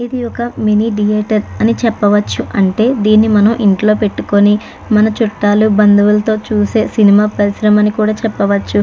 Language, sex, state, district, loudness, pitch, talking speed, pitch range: Telugu, female, Andhra Pradesh, Chittoor, -12 LUFS, 210 Hz, 135 wpm, 205-220 Hz